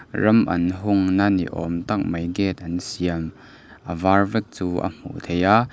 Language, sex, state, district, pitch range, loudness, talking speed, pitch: Mizo, male, Mizoram, Aizawl, 85-100 Hz, -22 LUFS, 190 wpm, 95 Hz